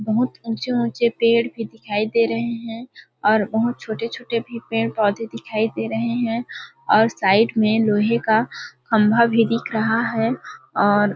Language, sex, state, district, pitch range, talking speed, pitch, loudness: Hindi, female, Chhattisgarh, Balrampur, 220-235 Hz, 175 wpm, 230 Hz, -20 LUFS